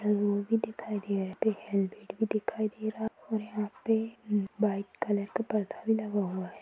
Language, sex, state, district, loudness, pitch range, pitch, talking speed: Hindi, male, Maharashtra, Sindhudurg, -32 LUFS, 205-220 Hz, 210 Hz, 190 wpm